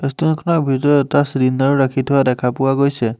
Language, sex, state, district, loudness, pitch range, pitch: Assamese, male, Assam, Hailakandi, -16 LUFS, 130-145 Hz, 135 Hz